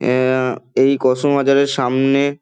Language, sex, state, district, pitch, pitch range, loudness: Bengali, male, West Bengal, Dakshin Dinajpur, 135 Hz, 130-140 Hz, -16 LUFS